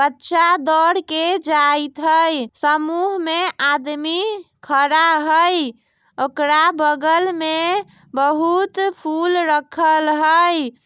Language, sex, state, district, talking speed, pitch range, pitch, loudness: Bajjika, female, Bihar, Vaishali, 95 wpm, 295-345 Hz, 320 Hz, -17 LUFS